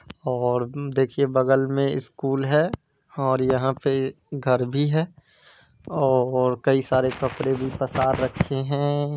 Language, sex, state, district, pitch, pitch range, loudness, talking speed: Hindi, male, Bihar, East Champaran, 135 Hz, 130-140 Hz, -23 LUFS, 130 wpm